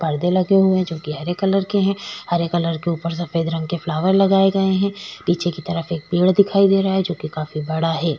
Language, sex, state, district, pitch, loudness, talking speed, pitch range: Hindi, female, Goa, North and South Goa, 175 Hz, -19 LUFS, 265 wpm, 165-195 Hz